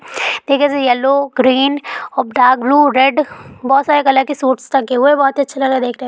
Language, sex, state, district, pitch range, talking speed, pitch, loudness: Hindi, female, Bihar, Supaul, 260-285 Hz, 235 wpm, 270 Hz, -13 LUFS